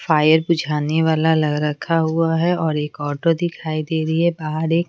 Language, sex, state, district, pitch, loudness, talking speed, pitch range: Hindi, female, Bihar, Patna, 160 Hz, -19 LUFS, 185 wpm, 155-165 Hz